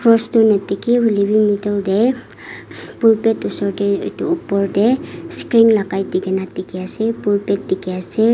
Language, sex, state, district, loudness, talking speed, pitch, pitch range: Nagamese, female, Nagaland, Kohima, -17 LUFS, 160 wpm, 205 Hz, 195-230 Hz